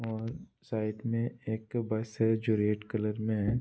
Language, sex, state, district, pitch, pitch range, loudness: Hindi, male, Bihar, Bhagalpur, 110 Hz, 110-115 Hz, -32 LUFS